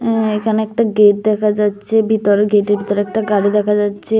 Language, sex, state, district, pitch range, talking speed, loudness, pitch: Bengali, female, Tripura, West Tripura, 205-220 Hz, 170 wpm, -15 LUFS, 210 Hz